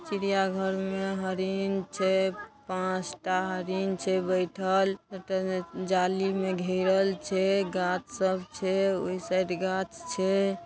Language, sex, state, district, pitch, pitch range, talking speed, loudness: Maithili, female, Bihar, Darbhanga, 190 Hz, 185-195 Hz, 120 wpm, -29 LUFS